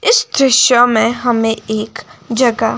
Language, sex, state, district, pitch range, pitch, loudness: Hindi, female, Himachal Pradesh, Shimla, 225-255 Hz, 240 Hz, -13 LUFS